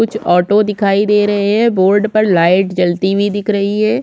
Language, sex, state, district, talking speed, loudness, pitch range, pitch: Hindi, female, Chhattisgarh, Korba, 210 wpm, -13 LUFS, 190-215 Hz, 205 Hz